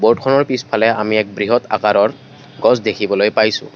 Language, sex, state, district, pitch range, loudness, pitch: Assamese, male, Assam, Kamrup Metropolitan, 110-135 Hz, -15 LUFS, 115 Hz